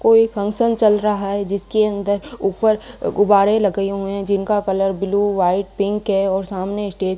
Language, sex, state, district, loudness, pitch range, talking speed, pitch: Hindi, female, Rajasthan, Bikaner, -18 LUFS, 195-210 Hz, 185 wpm, 200 Hz